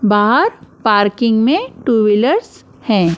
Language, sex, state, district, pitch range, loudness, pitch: Hindi, female, Maharashtra, Mumbai Suburban, 210-260 Hz, -14 LUFS, 225 Hz